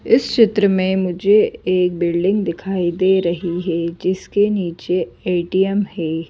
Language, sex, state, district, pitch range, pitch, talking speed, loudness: Hindi, female, Madhya Pradesh, Bhopal, 175-195 Hz, 185 Hz, 135 wpm, -18 LUFS